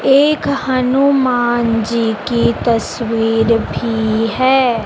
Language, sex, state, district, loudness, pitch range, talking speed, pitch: Hindi, female, Madhya Pradesh, Dhar, -15 LUFS, 225-260 Hz, 85 wpm, 235 Hz